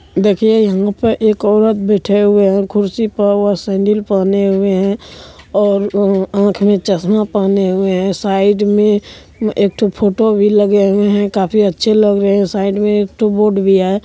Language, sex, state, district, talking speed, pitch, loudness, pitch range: Hindi, male, Bihar, Araria, 190 wpm, 205 Hz, -13 LUFS, 195-210 Hz